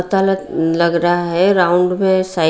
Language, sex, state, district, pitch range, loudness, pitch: Hindi, female, Bihar, Patna, 170-190 Hz, -15 LUFS, 180 Hz